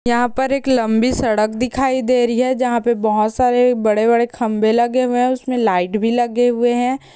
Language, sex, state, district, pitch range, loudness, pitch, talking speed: Hindi, female, Chhattisgarh, Bilaspur, 230-255 Hz, -16 LUFS, 240 Hz, 200 wpm